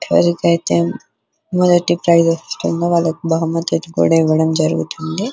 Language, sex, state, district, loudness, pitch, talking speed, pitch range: Telugu, female, Telangana, Nalgonda, -16 LUFS, 165 Hz, 100 wpm, 155-170 Hz